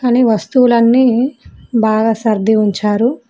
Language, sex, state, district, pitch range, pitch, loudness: Telugu, female, Telangana, Mahabubabad, 220-250 Hz, 230 Hz, -13 LUFS